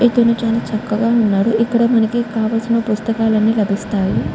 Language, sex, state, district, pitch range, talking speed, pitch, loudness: Telugu, female, Andhra Pradesh, Guntur, 215-230 Hz, 125 wpm, 225 Hz, -16 LUFS